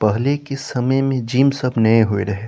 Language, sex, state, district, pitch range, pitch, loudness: Maithili, male, Bihar, Saharsa, 110-135 Hz, 125 Hz, -18 LUFS